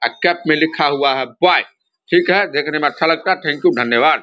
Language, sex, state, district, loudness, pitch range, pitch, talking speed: Hindi, male, Bihar, Vaishali, -16 LUFS, 145-175 Hz, 155 Hz, 240 wpm